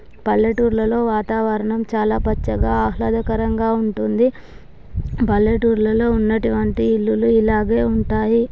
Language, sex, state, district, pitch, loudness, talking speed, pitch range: Telugu, female, Andhra Pradesh, Guntur, 220 Hz, -18 LUFS, 90 wpm, 210-225 Hz